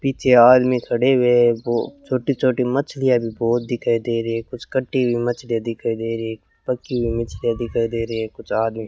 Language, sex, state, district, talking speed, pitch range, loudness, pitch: Hindi, male, Rajasthan, Bikaner, 215 wpm, 115-125 Hz, -20 LUFS, 120 Hz